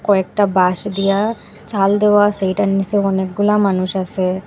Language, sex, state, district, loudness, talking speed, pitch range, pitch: Bengali, female, Assam, Hailakandi, -16 LUFS, 145 wpm, 190-205 Hz, 195 Hz